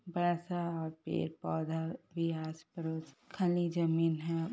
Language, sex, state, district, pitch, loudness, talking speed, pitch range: Hindi, female, Jharkhand, Sahebganj, 165 Hz, -36 LUFS, 145 wpm, 160-175 Hz